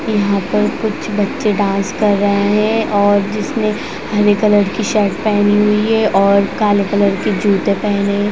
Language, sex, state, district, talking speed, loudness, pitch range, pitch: Hindi, female, Bihar, Vaishali, 175 wpm, -14 LUFS, 200-210 Hz, 205 Hz